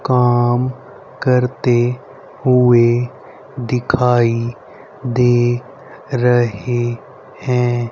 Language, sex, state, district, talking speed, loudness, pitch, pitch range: Hindi, male, Haryana, Rohtak, 55 wpm, -16 LUFS, 125 Hz, 120-125 Hz